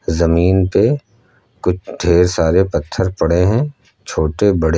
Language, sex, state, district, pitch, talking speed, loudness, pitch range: Hindi, male, Uttar Pradesh, Lucknow, 90 Hz, 125 wpm, -16 LUFS, 85-105 Hz